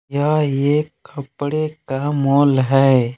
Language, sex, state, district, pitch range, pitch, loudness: Hindi, male, Jharkhand, Palamu, 135-150 Hz, 140 Hz, -18 LUFS